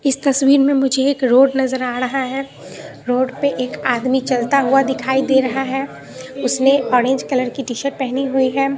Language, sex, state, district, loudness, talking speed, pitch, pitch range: Hindi, female, Bihar, Katihar, -17 LUFS, 200 wpm, 265 Hz, 255-275 Hz